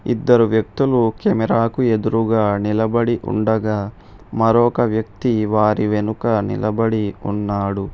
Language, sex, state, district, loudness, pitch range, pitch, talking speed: Telugu, male, Telangana, Hyderabad, -18 LUFS, 105-115 Hz, 110 Hz, 100 wpm